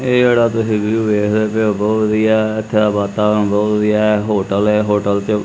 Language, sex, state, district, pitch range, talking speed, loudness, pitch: Punjabi, male, Punjab, Kapurthala, 105-110 Hz, 230 wpm, -15 LUFS, 105 Hz